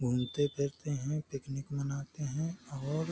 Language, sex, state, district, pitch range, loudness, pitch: Hindi, male, Uttar Pradesh, Hamirpur, 135-150 Hz, -36 LUFS, 140 Hz